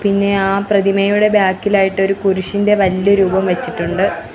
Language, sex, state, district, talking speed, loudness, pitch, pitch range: Malayalam, female, Kerala, Kollam, 140 wpm, -14 LUFS, 195 Hz, 190-200 Hz